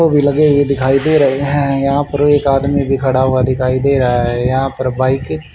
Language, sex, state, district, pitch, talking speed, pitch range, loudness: Hindi, male, Haryana, Charkhi Dadri, 135 Hz, 250 wpm, 130-145 Hz, -14 LUFS